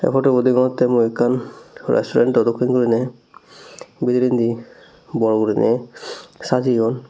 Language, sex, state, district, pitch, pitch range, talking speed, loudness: Chakma, male, Tripura, Dhalai, 125 Hz, 115-125 Hz, 100 wpm, -18 LUFS